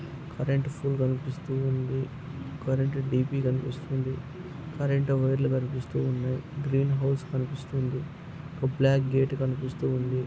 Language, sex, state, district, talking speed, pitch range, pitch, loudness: Telugu, male, Andhra Pradesh, Anantapur, 125 wpm, 130-140 Hz, 135 Hz, -29 LUFS